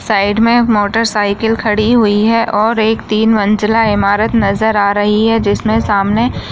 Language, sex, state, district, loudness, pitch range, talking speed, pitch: Hindi, female, Maharashtra, Nagpur, -12 LUFS, 205-225 Hz, 175 wpm, 215 Hz